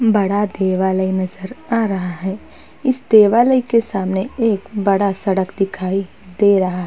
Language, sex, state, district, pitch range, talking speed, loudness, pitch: Hindi, female, Uttar Pradesh, Hamirpur, 190-220 Hz, 150 wpm, -17 LUFS, 195 Hz